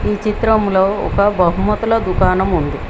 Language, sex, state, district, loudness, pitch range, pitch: Telugu, female, Telangana, Mahabubabad, -15 LUFS, 190-215 Hz, 205 Hz